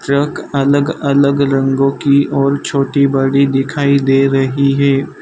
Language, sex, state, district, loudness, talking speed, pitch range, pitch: Hindi, male, Gujarat, Valsad, -13 LUFS, 140 wpm, 135-140 Hz, 140 Hz